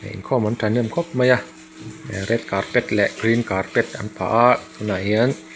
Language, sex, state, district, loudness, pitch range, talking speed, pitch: Mizo, male, Mizoram, Aizawl, -20 LUFS, 105-120 Hz, 185 wpm, 115 Hz